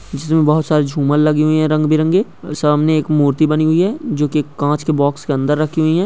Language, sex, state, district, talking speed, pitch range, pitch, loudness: Hindi, male, Bihar, Araria, 255 wpm, 150-155 Hz, 155 Hz, -15 LUFS